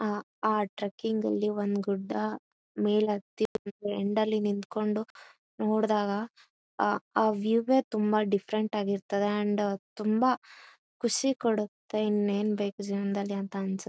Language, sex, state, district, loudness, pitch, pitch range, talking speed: Kannada, female, Karnataka, Bellary, -29 LUFS, 210 Hz, 200-215 Hz, 120 wpm